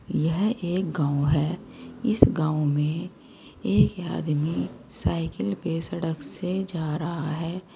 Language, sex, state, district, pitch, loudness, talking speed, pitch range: Hindi, female, Uttar Pradesh, Saharanpur, 165 Hz, -26 LUFS, 125 wpm, 155-185 Hz